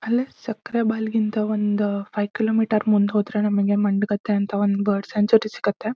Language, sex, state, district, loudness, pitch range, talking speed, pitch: Kannada, female, Karnataka, Shimoga, -22 LUFS, 205-220 Hz, 170 wpm, 210 Hz